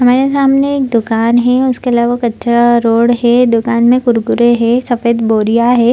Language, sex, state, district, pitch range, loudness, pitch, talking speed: Hindi, female, Bihar, Samastipur, 235-250 Hz, -11 LUFS, 240 Hz, 170 wpm